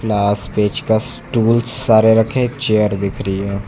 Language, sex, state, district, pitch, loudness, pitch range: Hindi, male, Uttar Pradesh, Lucknow, 110 Hz, -16 LUFS, 100-115 Hz